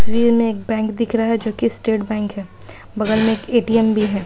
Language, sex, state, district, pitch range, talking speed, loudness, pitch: Hindi, female, Bihar, Araria, 215-230 Hz, 255 wpm, -18 LUFS, 220 Hz